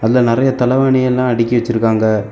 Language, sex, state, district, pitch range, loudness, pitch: Tamil, male, Tamil Nadu, Kanyakumari, 115-125 Hz, -14 LUFS, 120 Hz